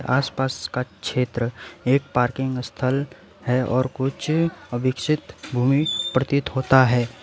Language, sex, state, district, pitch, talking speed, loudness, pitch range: Hindi, male, West Bengal, Alipurduar, 130 Hz, 115 wpm, -23 LUFS, 125-140 Hz